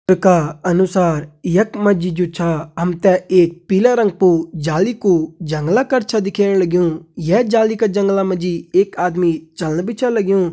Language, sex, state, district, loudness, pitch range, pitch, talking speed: Hindi, male, Uttarakhand, Tehri Garhwal, -16 LUFS, 170-205 Hz, 185 Hz, 180 wpm